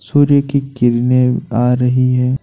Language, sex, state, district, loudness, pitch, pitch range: Hindi, male, Jharkhand, Ranchi, -14 LUFS, 125 Hz, 125-135 Hz